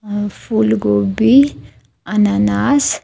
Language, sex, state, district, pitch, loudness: Hindi, female, Himachal Pradesh, Shimla, 205 Hz, -15 LUFS